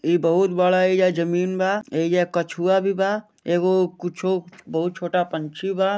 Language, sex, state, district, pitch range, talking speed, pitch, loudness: Bhojpuri, male, Jharkhand, Sahebganj, 175-190 Hz, 160 wpm, 180 Hz, -22 LUFS